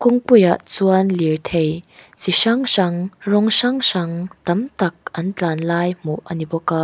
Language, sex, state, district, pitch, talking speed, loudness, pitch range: Mizo, female, Mizoram, Aizawl, 180 Hz, 175 wpm, -17 LUFS, 170-205 Hz